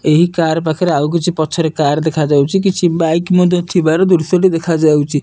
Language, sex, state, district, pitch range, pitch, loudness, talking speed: Odia, male, Odisha, Nuapada, 155-175 Hz, 165 Hz, -13 LUFS, 150 wpm